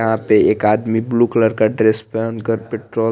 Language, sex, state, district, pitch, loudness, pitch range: Hindi, male, Chandigarh, Chandigarh, 110 Hz, -16 LUFS, 110-115 Hz